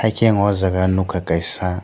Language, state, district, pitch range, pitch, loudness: Kokborok, Tripura, Dhalai, 90-100 Hz, 95 Hz, -18 LUFS